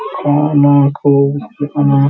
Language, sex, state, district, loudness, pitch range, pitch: Hindi, male, Bihar, Araria, -13 LUFS, 140-145 Hz, 145 Hz